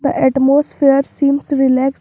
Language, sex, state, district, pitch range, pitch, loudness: English, female, Jharkhand, Garhwa, 265-280 Hz, 275 Hz, -14 LUFS